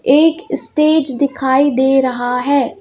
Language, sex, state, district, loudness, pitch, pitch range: Hindi, female, Madhya Pradesh, Bhopal, -14 LUFS, 275 Hz, 260-295 Hz